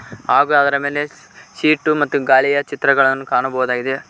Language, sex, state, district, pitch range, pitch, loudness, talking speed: Kannada, male, Karnataka, Koppal, 135-145 Hz, 140 Hz, -16 LUFS, 115 wpm